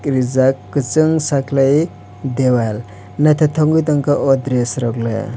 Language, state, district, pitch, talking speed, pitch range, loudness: Kokborok, Tripura, West Tripura, 135 Hz, 125 wpm, 120-145 Hz, -16 LUFS